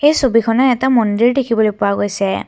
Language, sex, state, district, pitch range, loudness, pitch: Assamese, female, Assam, Kamrup Metropolitan, 210-260 Hz, -14 LUFS, 230 Hz